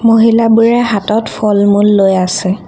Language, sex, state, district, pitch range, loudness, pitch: Assamese, female, Assam, Kamrup Metropolitan, 200-230 Hz, -10 LUFS, 210 Hz